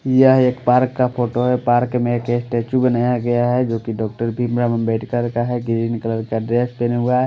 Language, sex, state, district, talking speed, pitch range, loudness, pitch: Hindi, male, Haryana, Rohtak, 225 wpm, 115-125 Hz, -18 LUFS, 120 Hz